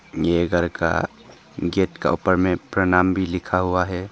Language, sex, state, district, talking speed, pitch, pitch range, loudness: Hindi, male, Arunachal Pradesh, Papum Pare, 175 wpm, 90 Hz, 90-95 Hz, -21 LUFS